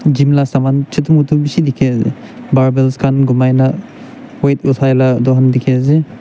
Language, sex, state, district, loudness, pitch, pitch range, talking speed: Nagamese, male, Nagaland, Dimapur, -12 LUFS, 135 Hz, 130-150 Hz, 165 wpm